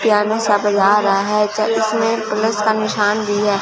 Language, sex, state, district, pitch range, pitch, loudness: Hindi, female, Punjab, Fazilka, 205-220 Hz, 210 Hz, -16 LUFS